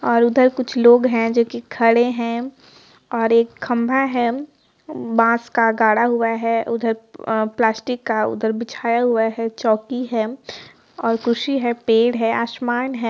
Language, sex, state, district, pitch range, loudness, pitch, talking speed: Hindi, female, Jharkhand, Sahebganj, 230-245 Hz, -19 LUFS, 235 Hz, 150 wpm